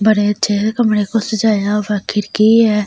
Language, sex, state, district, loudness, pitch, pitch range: Hindi, female, Delhi, New Delhi, -15 LUFS, 210 Hz, 210-220 Hz